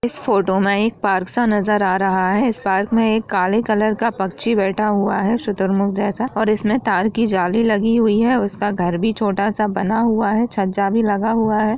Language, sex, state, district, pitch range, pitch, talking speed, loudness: Hindi, female, Bihar, Jahanabad, 195-225 Hz, 210 Hz, 230 wpm, -18 LUFS